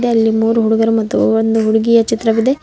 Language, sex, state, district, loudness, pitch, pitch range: Kannada, female, Karnataka, Bidar, -13 LUFS, 225 Hz, 220-230 Hz